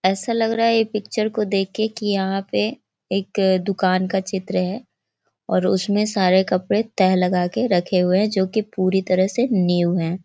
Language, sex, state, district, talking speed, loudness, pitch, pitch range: Hindi, female, Bihar, Jahanabad, 205 wpm, -20 LUFS, 195 Hz, 185-215 Hz